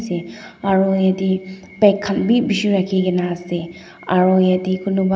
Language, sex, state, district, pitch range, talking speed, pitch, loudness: Nagamese, female, Nagaland, Dimapur, 185-195 Hz, 140 wpm, 190 Hz, -18 LUFS